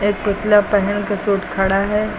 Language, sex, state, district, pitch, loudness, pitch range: Hindi, female, Uttar Pradesh, Lucknow, 205 Hz, -17 LUFS, 200-210 Hz